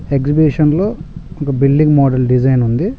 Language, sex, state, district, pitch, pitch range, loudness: Telugu, male, Telangana, Mahabubabad, 145 Hz, 135-155 Hz, -13 LUFS